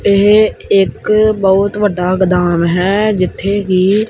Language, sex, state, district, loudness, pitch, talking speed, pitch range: Punjabi, male, Punjab, Kapurthala, -12 LUFS, 195 Hz, 115 wpm, 185-205 Hz